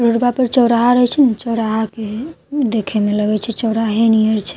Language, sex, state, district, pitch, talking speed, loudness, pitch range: Maithili, female, Bihar, Katihar, 230 Hz, 210 wpm, -16 LUFS, 220-245 Hz